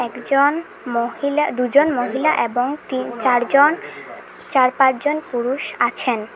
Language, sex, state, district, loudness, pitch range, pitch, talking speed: Bengali, female, Assam, Hailakandi, -18 LUFS, 245-290 Hz, 260 Hz, 105 wpm